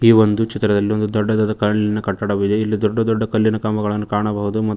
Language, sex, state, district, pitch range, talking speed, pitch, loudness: Kannada, male, Karnataka, Koppal, 105-110 Hz, 165 wpm, 105 Hz, -18 LUFS